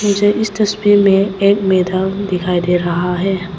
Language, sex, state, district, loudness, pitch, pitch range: Hindi, female, Arunachal Pradesh, Papum Pare, -14 LUFS, 195 Hz, 180-205 Hz